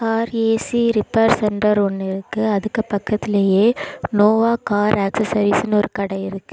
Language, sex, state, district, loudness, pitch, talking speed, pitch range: Tamil, female, Tamil Nadu, Kanyakumari, -18 LUFS, 210 Hz, 130 wpm, 200-225 Hz